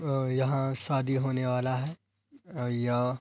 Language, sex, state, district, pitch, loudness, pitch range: Hindi, female, Bihar, Araria, 130 Hz, -30 LUFS, 125-135 Hz